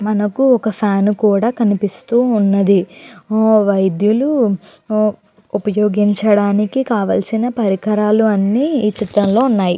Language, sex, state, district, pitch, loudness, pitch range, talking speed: Telugu, female, Andhra Pradesh, Chittoor, 210 Hz, -15 LUFS, 205-220 Hz, 90 wpm